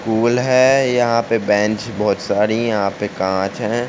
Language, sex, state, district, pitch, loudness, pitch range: Hindi, male, Uttar Pradesh, Ghazipur, 110 Hz, -17 LUFS, 105-120 Hz